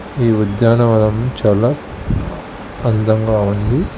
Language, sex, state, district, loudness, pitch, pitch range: Telugu, male, Telangana, Hyderabad, -15 LUFS, 110 Hz, 110-120 Hz